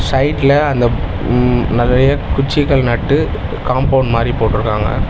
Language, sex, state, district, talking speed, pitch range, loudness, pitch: Tamil, male, Tamil Nadu, Chennai, 105 wpm, 115-135 Hz, -14 LUFS, 125 Hz